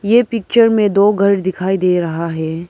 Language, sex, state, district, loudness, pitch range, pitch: Hindi, female, Arunachal Pradesh, Papum Pare, -14 LUFS, 175-215 Hz, 195 Hz